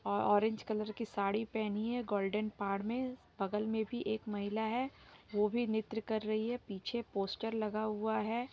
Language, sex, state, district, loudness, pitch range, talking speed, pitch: Hindi, female, Bihar, Jahanabad, -37 LUFS, 210-225 Hz, 205 wpm, 215 Hz